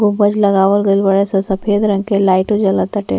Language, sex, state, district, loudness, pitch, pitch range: Bhojpuri, female, Uttar Pradesh, Ghazipur, -14 LUFS, 200 Hz, 195-205 Hz